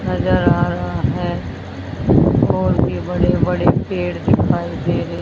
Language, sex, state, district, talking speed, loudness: Hindi, male, Haryana, Jhajjar, 140 wpm, -17 LUFS